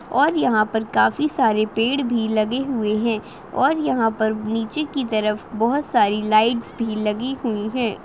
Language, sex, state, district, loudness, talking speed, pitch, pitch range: Hindi, female, Bihar, Saharsa, -21 LUFS, 170 wpm, 225 Hz, 215-265 Hz